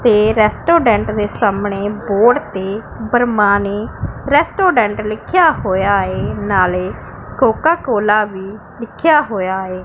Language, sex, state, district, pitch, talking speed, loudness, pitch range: Punjabi, female, Punjab, Pathankot, 210 Hz, 110 wpm, -15 LUFS, 200-235 Hz